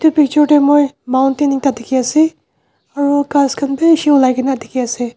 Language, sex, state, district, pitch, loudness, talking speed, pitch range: Nagamese, male, Nagaland, Dimapur, 280 Hz, -13 LUFS, 160 wpm, 260-295 Hz